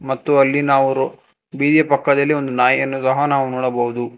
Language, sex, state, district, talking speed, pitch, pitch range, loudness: Kannada, male, Karnataka, Bangalore, 115 wpm, 135 Hz, 130-140 Hz, -17 LUFS